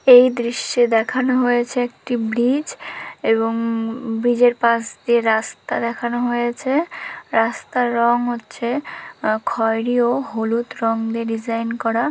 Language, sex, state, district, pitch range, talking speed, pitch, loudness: Bengali, female, West Bengal, Dakshin Dinajpur, 225-245 Hz, 115 wpm, 235 Hz, -19 LUFS